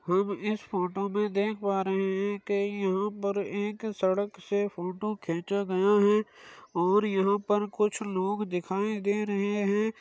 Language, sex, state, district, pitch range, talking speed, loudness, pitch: Hindi, male, Uttar Pradesh, Muzaffarnagar, 195-210 Hz, 160 wpm, -29 LUFS, 200 Hz